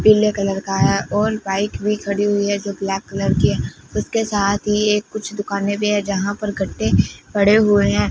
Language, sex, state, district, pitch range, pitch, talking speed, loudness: Hindi, female, Punjab, Fazilka, 200-210 Hz, 205 Hz, 205 wpm, -19 LUFS